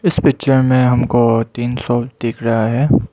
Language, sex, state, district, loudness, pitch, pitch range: Hindi, male, Arunachal Pradesh, Lower Dibang Valley, -15 LUFS, 120 Hz, 115-135 Hz